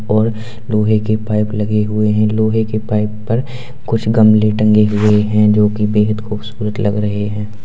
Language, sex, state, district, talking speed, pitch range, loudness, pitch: Hindi, male, Uttar Pradesh, Lalitpur, 180 wpm, 105-110 Hz, -15 LUFS, 105 Hz